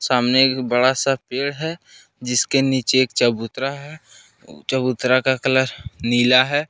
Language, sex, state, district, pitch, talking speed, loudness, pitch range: Hindi, male, Jharkhand, Ranchi, 130 Hz, 135 wpm, -19 LUFS, 125-135 Hz